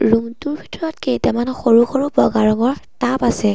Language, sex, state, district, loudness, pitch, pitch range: Assamese, female, Assam, Sonitpur, -17 LUFS, 240 Hz, 230-275 Hz